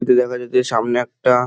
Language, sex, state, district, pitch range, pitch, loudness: Bengali, male, West Bengal, Dakshin Dinajpur, 120-125 Hz, 125 Hz, -18 LUFS